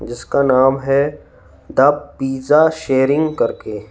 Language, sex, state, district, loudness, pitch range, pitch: Hindi, male, Uttar Pradesh, Lalitpur, -16 LUFS, 130-145 Hz, 135 Hz